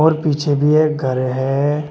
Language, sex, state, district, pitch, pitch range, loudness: Hindi, male, Uttar Pradesh, Shamli, 145 Hz, 135-155 Hz, -17 LUFS